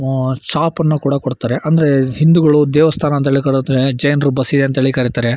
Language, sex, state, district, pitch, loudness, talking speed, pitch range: Kannada, male, Karnataka, Shimoga, 140 Hz, -14 LUFS, 165 wpm, 130-150 Hz